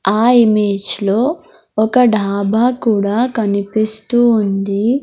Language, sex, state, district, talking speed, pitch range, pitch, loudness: Telugu, female, Andhra Pradesh, Sri Satya Sai, 95 wpm, 200-240 Hz, 220 Hz, -14 LUFS